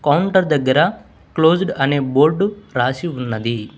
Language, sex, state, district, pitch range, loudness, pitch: Telugu, male, Telangana, Hyderabad, 130-180 Hz, -17 LUFS, 145 Hz